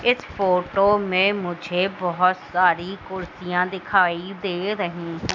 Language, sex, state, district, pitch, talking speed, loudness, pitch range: Hindi, female, Madhya Pradesh, Katni, 185 Hz, 125 wpm, -22 LUFS, 175-195 Hz